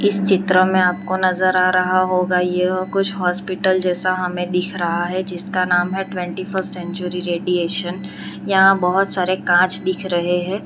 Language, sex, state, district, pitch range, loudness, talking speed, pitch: Hindi, female, Gujarat, Valsad, 180-185 Hz, -18 LUFS, 170 wpm, 185 Hz